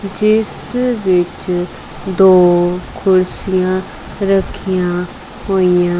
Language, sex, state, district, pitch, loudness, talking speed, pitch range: Punjabi, female, Punjab, Kapurthala, 185 Hz, -14 LUFS, 60 wpm, 180-195 Hz